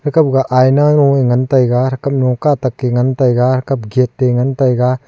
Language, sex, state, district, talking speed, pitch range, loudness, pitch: Wancho, male, Arunachal Pradesh, Longding, 155 wpm, 125-135 Hz, -13 LUFS, 130 Hz